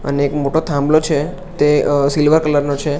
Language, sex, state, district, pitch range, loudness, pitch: Gujarati, male, Gujarat, Gandhinagar, 145-155 Hz, -15 LUFS, 145 Hz